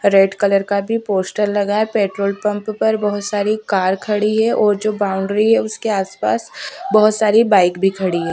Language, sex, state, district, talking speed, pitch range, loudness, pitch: Hindi, female, Bihar, Patna, 195 wpm, 195-215 Hz, -17 LUFS, 205 Hz